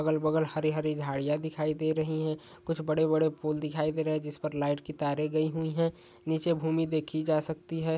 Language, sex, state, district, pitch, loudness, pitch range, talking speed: Hindi, male, Rajasthan, Churu, 155 Hz, -31 LUFS, 155-160 Hz, 235 wpm